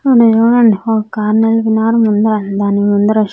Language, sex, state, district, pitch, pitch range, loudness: Telugu, female, Andhra Pradesh, Sri Satya Sai, 220 Hz, 210-225 Hz, -12 LUFS